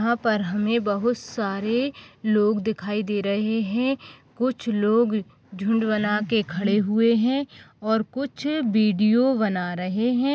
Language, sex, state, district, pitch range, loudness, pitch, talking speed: Hindi, female, Maharashtra, Dhule, 210-235 Hz, -23 LUFS, 220 Hz, 135 wpm